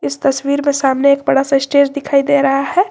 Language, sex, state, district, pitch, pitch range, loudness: Hindi, female, Jharkhand, Garhwa, 280 Hz, 275-285 Hz, -14 LUFS